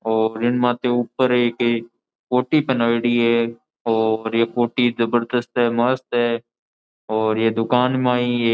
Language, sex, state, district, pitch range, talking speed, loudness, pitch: Marwari, male, Rajasthan, Nagaur, 115-125 Hz, 140 wpm, -20 LUFS, 120 Hz